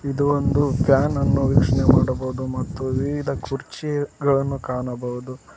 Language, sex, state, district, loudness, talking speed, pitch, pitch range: Kannada, male, Karnataka, Koppal, -21 LUFS, 110 wpm, 135 Hz, 130-140 Hz